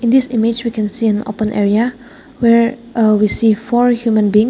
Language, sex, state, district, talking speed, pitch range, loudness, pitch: English, female, Nagaland, Dimapur, 200 wpm, 215-240 Hz, -15 LUFS, 230 Hz